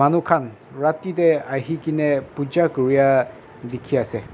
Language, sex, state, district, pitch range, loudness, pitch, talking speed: Nagamese, male, Nagaland, Dimapur, 130-160 Hz, -20 LUFS, 140 Hz, 110 wpm